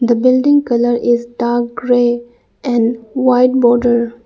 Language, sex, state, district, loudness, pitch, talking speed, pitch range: English, female, Arunachal Pradesh, Lower Dibang Valley, -14 LUFS, 240 Hz, 125 wpm, 235-250 Hz